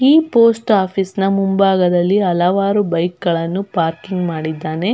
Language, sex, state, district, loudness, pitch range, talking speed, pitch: Kannada, female, Karnataka, Belgaum, -16 LUFS, 175-205 Hz, 110 wpm, 190 Hz